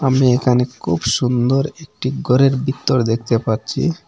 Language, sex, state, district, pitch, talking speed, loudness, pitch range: Bengali, male, Assam, Hailakandi, 130 Hz, 130 wpm, -17 LUFS, 120-135 Hz